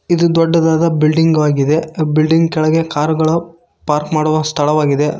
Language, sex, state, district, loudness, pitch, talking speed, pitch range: Kannada, male, Karnataka, Koppal, -14 LUFS, 155 Hz, 115 wpm, 155-165 Hz